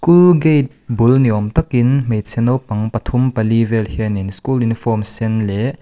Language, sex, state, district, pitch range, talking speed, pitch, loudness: Mizo, male, Mizoram, Aizawl, 110-130 Hz, 165 wpm, 115 Hz, -15 LUFS